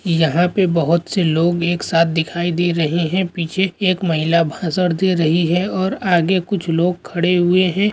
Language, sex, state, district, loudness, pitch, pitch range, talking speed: Hindi, male, Jharkhand, Jamtara, -17 LUFS, 175 Hz, 170-185 Hz, 180 wpm